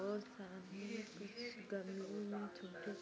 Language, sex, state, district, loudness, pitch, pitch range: Hindi, female, Chhattisgarh, Raigarh, -48 LUFS, 205 Hz, 195-210 Hz